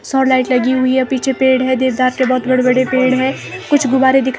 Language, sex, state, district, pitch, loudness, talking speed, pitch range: Hindi, female, Himachal Pradesh, Shimla, 260 Hz, -14 LUFS, 245 wpm, 255-260 Hz